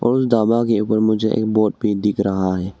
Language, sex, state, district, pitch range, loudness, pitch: Hindi, male, Arunachal Pradesh, Longding, 100-115 Hz, -18 LUFS, 110 Hz